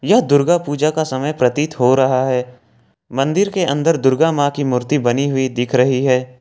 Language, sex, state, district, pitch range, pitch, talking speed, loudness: Hindi, male, Jharkhand, Ranchi, 125-150 Hz, 135 Hz, 195 wpm, -16 LUFS